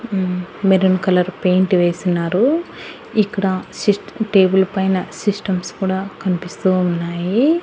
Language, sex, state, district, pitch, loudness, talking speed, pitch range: Telugu, female, Andhra Pradesh, Annamaya, 190 Hz, -18 LUFS, 100 wpm, 180-200 Hz